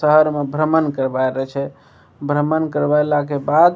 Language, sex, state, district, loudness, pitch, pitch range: Maithili, male, Bihar, Begusarai, -18 LUFS, 145 Hz, 140-150 Hz